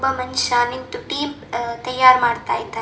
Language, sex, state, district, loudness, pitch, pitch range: Kannada, female, Karnataka, Dakshina Kannada, -19 LUFS, 255 Hz, 240-270 Hz